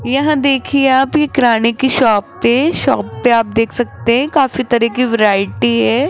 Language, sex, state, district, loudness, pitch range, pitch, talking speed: Hindi, female, Rajasthan, Jaipur, -13 LUFS, 230-270 Hz, 245 Hz, 185 wpm